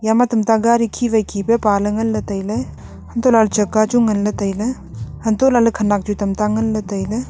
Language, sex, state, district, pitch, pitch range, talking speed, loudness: Wancho, female, Arunachal Pradesh, Longding, 220 Hz, 205-230 Hz, 180 wpm, -17 LUFS